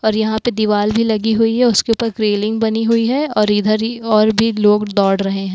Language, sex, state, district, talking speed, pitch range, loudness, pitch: Hindi, female, Uttar Pradesh, Lucknow, 235 wpm, 210-225 Hz, -15 LUFS, 220 Hz